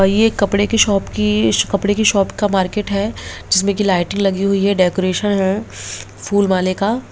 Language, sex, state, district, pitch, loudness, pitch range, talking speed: Hindi, female, Bihar, Begusarai, 195 Hz, -16 LUFS, 185-205 Hz, 185 wpm